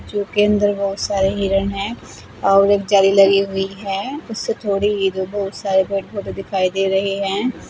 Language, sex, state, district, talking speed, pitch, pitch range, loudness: Hindi, female, Uttar Pradesh, Saharanpur, 195 wpm, 195 Hz, 195-205 Hz, -18 LUFS